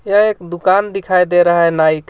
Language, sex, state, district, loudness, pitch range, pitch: Hindi, male, Jharkhand, Ranchi, -14 LUFS, 170-195 Hz, 180 Hz